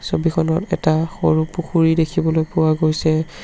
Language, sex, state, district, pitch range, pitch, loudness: Assamese, male, Assam, Sonitpur, 155-165 Hz, 160 Hz, -18 LUFS